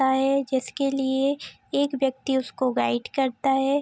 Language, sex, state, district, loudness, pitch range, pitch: Hindi, female, Bihar, Araria, -25 LUFS, 260-275 Hz, 270 Hz